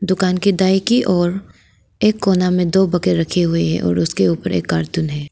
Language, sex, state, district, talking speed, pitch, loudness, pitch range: Hindi, female, Arunachal Pradesh, Lower Dibang Valley, 215 wpm, 180 Hz, -17 LUFS, 145-190 Hz